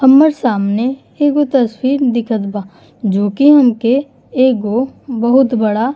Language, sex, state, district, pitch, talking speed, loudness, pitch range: Bhojpuri, female, Uttar Pradesh, Gorakhpur, 250 Hz, 130 wpm, -14 LUFS, 220-270 Hz